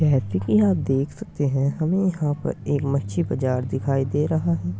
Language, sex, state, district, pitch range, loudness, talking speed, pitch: Hindi, male, Uttar Pradesh, Muzaffarnagar, 125-150 Hz, -23 LUFS, 200 wpm, 140 Hz